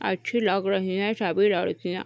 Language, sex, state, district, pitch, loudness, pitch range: Hindi, female, Uttar Pradesh, Deoria, 195 Hz, -25 LUFS, 185-210 Hz